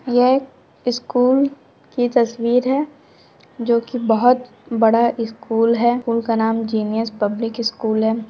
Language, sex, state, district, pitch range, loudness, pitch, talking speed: Hindi, female, Bihar, Samastipur, 225-250 Hz, -19 LUFS, 235 Hz, 130 wpm